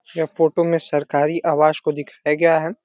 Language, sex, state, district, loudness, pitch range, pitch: Hindi, male, Uttar Pradesh, Deoria, -19 LUFS, 150-165 Hz, 160 Hz